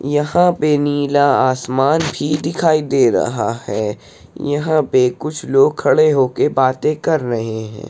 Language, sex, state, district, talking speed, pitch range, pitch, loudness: Hindi, male, Uttar Pradesh, Hamirpur, 145 wpm, 130-155 Hz, 145 Hz, -16 LUFS